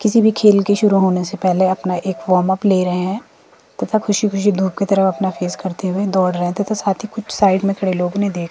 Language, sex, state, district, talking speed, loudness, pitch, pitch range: Hindi, female, Himachal Pradesh, Shimla, 270 wpm, -17 LUFS, 190 Hz, 185-205 Hz